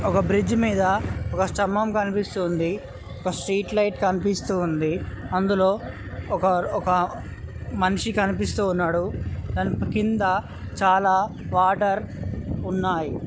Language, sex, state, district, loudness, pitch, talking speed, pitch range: Telugu, male, Andhra Pradesh, Srikakulam, -24 LUFS, 190 Hz, 100 wpm, 180-200 Hz